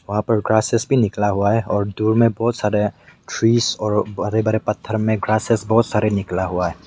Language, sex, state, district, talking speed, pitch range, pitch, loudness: Hindi, male, Meghalaya, West Garo Hills, 210 wpm, 105-115 Hz, 110 Hz, -19 LUFS